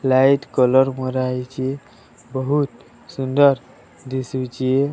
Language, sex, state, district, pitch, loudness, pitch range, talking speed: Odia, male, Odisha, Sambalpur, 130 Hz, -20 LUFS, 130-135 Hz, 75 wpm